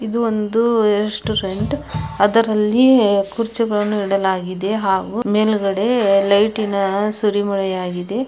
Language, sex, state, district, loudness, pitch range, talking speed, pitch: Kannada, female, Karnataka, Belgaum, -17 LUFS, 195-220 Hz, 85 wpm, 210 Hz